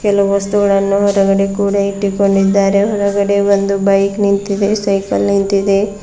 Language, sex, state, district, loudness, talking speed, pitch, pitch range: Kannada, female, Karnataka, Bidar, -13 LUFS, 110 wpm, 200 Hz, 195-200 Hz